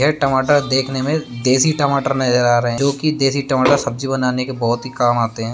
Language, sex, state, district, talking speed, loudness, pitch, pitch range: Hindi, male, Bihar, Darbhanga, 225 wpm, -17 LUFS, 130 Hz, 125-140 Hz